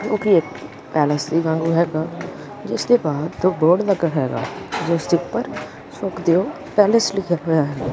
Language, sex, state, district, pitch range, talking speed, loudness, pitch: Punjabi, male, Punjab, Kapurthala, 155-185 Hz, 165 wpm, -20 LUFS, 170 Hz